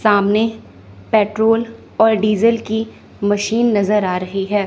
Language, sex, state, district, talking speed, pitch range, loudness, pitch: Hindi, female, Chandigarh, Chandigarh, 130 wpm, 200-225 Hz, -17 LUFS, 210 Hz